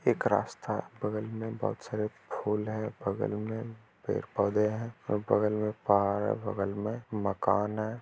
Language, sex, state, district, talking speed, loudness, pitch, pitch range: Hindi, male, Bihar, Gopalganj, 155 wpm, -32 LUFS, 105 Hz, 105-110 Hz